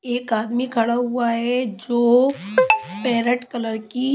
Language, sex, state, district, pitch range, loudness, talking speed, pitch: Hindi, female, Haryana, Charkhi Dadri, 230-250 Hz, -20 LUFS, 130 wpm, 240 Hz